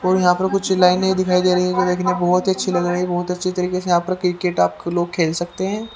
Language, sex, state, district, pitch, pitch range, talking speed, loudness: Hindi, male, Haryana, Jhajjar, 180 Hz, 175-185 Hz, 290 wpm, -19 LUFS